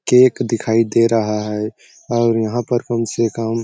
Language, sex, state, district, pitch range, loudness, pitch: Hindi, male, Chhattisgarh, Sarguja, 110-120 Hz, -17 LUFS, 115 Hz